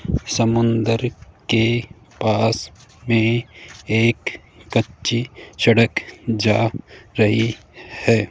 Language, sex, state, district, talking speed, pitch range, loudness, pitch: Hindi, male, Rajasthan, Jaipur, 70 wpm, 110-115 Hz, -20 LUFS, 115 Hz